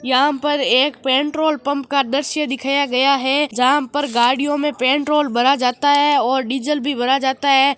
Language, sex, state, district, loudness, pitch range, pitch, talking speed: Marwari, female, Rajasthan, Nagaur, -17 LUFS, 265-290 Hz, 275 Hz, 175 wpm